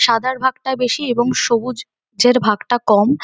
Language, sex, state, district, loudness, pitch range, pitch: Bengali, female, West Bengal, North 24 Parganas, -17 LUFS, 230-255 Hz, 245 Hz